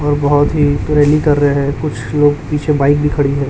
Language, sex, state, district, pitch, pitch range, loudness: Hindi, male, Chhattisgarh, Raipur, 145 Hz, 140-150 Hz, -13 LUFS